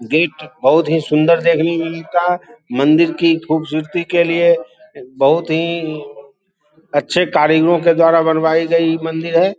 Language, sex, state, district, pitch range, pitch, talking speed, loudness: Hindi, male, Bihar, Vaishali, 155-170 Hz, 165 Hz, 145 wpm, -15 LUFS